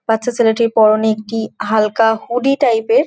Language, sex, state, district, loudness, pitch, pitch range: Bengali, female, West Bengal, Jhargram, -15 LUFS, 225 Hz, 220-245 Hz